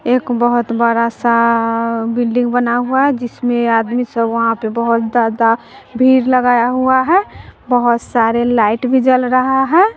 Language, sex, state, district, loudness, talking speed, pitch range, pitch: Hindi, female, Bihar, West Champaran, -14 LUFS, 150 wpm, 230-255 Hz, 240 Hz